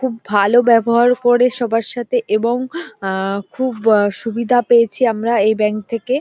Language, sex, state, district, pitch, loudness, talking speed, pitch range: Bengali, female, West Bengal, North 24 Parganas, 235 Hz, -16 LUFS, 155 wpm, 215-245 Hz